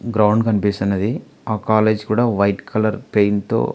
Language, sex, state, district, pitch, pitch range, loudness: Telugu, male, Andhra Pradesh, Visakhapatnam, 110 Hz, 100-110 Hz, -18 LUFS